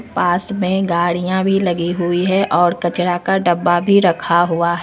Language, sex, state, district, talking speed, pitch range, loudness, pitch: Hindi, female, Jharkhand, Ranchi, 185 wpm, 175-190 Hz, -16 LUFS, 175 Hz